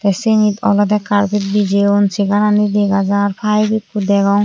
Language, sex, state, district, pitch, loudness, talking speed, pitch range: Chakma, female, Tripura, West Tripura, 205 Hz, -14 LUFS, 120 wpm, 200-210 Hz